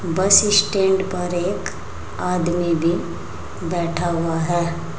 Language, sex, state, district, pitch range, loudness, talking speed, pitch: Hindi, female, Uttar Pradesh, Saharanpur, 165-180 Hz, -19 LUFS, 110 wpm, 175 Hz